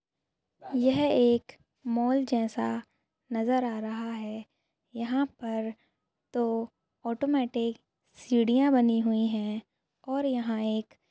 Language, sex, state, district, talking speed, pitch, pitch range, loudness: Hindi, female, Bihar, Madhepura, 110 wpm, 230 Hz, 220-250 Hz, -29 LUFS